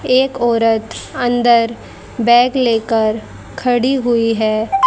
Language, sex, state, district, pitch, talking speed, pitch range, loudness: Hindi, female, Haryana, Charkhi Dadri, 235 Hz, 100 wpm, 225-250 Hz, -15 LUFS